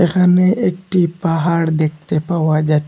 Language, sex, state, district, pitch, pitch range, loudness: Bengali, male, Assam, Hailakandi, 170 Hz, 155-180 Hz, -16 LUFS